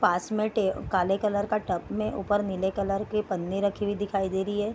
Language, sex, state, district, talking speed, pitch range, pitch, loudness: Hindi, female, Bihar, Darbhanga, 240 wpm, 190-210 Hz, 200 Hz, -28 LUFS